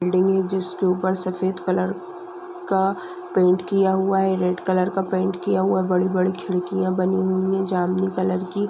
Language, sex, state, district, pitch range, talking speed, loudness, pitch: Hindi, female, West Bengal, Kolkata, 185-190 Hz, 185 wpm, -22 LUFS, 185 Hz